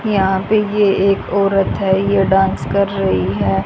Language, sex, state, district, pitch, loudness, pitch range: Hindi, female, Haryana, Jhajjar, 195 Hz, -15 LUFS, 190-200 Hz